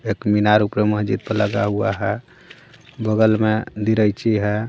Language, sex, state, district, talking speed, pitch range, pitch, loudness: Hindi, female, Jharkhand, Garhwa, 155 wpm, 105-110 Hz, 105 Hz, -19 LUFS